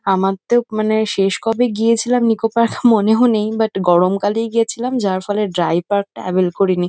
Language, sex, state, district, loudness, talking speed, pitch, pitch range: Bengali, female, West Bengal, North 24 Parganas, -16 LUFS, 165 wpm, 215 Hz, 195-230 Hz